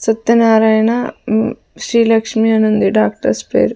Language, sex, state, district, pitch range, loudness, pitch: Telugu, female, Andhra Pradesh, Sri Satya Sai, 220-230 Hz, -14 LUFS, 225 Hz